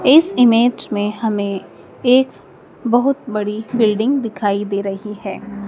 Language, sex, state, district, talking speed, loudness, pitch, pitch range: Hindi, female, Madhya Pradesh, Dhar, 125 wpm, -17 LUFS, 220 Hz, 205-245 Hz